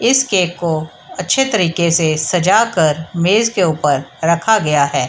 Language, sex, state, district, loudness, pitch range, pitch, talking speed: Hindi, female, Bihar, Samastipur, -15 LUFS, 155-195 Hz, 170 Hz, 155 wpm